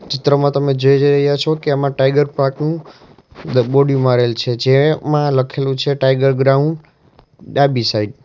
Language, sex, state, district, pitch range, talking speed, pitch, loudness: Gujarati, male, Gujarat, Valsad, 135-145 Hz, 155 wpm, 140 Hz, -15 LUFS